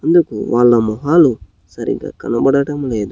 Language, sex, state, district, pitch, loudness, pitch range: Telugu, male, Telangana, Hyderabad, 120 Hz, -15 LUFS, 105-140 Hz